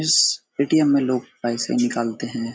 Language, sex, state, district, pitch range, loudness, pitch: Hindi, male, Uttar Pradesh, Etah, 120-145 Hz, -21 LUFS, 125 Hz